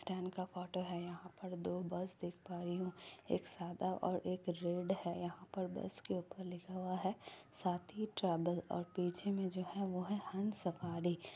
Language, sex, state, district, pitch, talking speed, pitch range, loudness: Hindi, female, Bihar, Kishanganj, 180 Hz, 200 wpm, 175-185 Hz, -42 LUFS